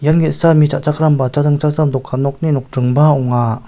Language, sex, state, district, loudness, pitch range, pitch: Garo, male, Meghalaya, South Garo Hills, -14 LUFS, 130-155 Hz, 145 Hz